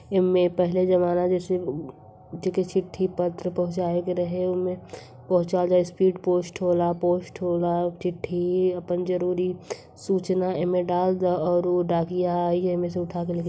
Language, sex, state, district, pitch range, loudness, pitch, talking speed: Hindi, female, Uttar Pradesh, Varanasi, 175-185 Hz, -25 LUFS, 180 Hz, 165 wpm